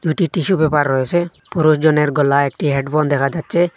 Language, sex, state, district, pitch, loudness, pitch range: Bengali, male, Assam, Hailakandi, 155 Hz, -16 LUFS, 145-170 Hz